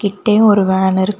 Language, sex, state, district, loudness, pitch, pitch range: Tamil, female, Tamil Nadu, Kanyakumari, -13 LUFS, 200 Hz, 190-210 Hz